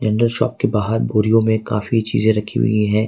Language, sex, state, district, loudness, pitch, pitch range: Hindi, male, Jharkhand, Ranchi, -18 LUFS, 110 Hz, 105-115 Hz